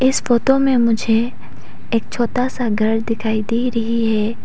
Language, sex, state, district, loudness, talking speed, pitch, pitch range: Hindi, female, Arunachal Pradesh, Papum Pare, -18 LUFS, 160 wpm, 230 Hz, 225-245 Hz